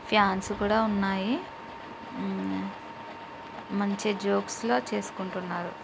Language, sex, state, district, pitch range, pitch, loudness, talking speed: Telugu, female, Andhra Pradesh, Guntur, 175-210 Hz, 195 Hz, -29 LUFS, 80 wpm